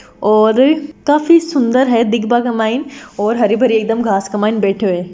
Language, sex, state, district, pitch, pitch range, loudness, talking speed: Marwari, female, Rajasthan, Nagaur, 230 Hz, 215-265 Hz, -14 LUFS, 185 wpm